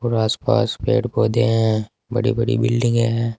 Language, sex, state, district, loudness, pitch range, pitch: Hindi, male, Uttar Pradesh, Saharanpur, -19 LUFS, 115-120 Hz, 115 Hz